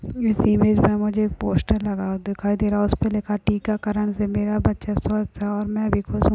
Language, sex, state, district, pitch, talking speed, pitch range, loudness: Hindi, female, Uttar Pradesh, Ghazipur, 210 Hz, 255 wpm, 205-210 Hz, -22 LUFS